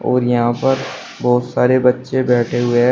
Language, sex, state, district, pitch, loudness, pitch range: Hindi, male, Uttar Pradesh, Shamli, 125 Hz, -16 LUFS, 120-130 Hz